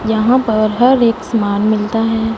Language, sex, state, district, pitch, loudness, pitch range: Hindi, female, Punjab, Fazilka, 225 Hz, -14 LUFS, 215-230 Hz